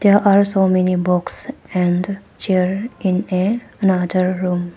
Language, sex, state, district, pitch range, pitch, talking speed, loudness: English, female, Arunachal Pradesh, Papum Pare, 180-200 Hz, 185 Hz, 140 wpm, -18 LUFS